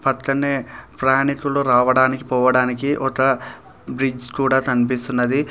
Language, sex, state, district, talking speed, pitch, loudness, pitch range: Telugu, male, Telangana, Hyderabad, 85 wpm, 130 Hz, -19 LUFS, 125-135 Hz